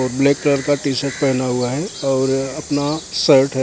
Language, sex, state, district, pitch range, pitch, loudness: Hindi, male, Maharashtra, Mumbai Suburban, 130-145 Hz, 140 Hz, -18 LUFS